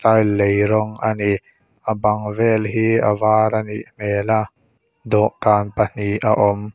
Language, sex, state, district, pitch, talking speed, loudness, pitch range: Mizo, male, Mizoram, Aizawl, 105 Hz, 160 wpm, -18 LUFS, 105-110 Hz